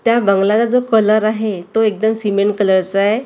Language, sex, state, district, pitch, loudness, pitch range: Marathi, female, Maharashtra, Gondia, 215 Hz, -15 LUFS, 200-225 Hz